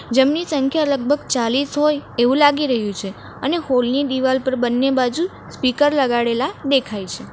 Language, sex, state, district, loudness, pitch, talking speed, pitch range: Gujarati, female, Gujarat, Valsad, -19 LUFS, 265 Hz, 165 wpm, 245-290 Hz